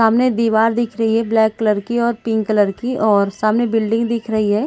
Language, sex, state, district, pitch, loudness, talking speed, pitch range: Hindi, female, Chhattisgarh, Raigarh, 225 Hz, -17 LUFS, 230 wpm, 215-235 Hz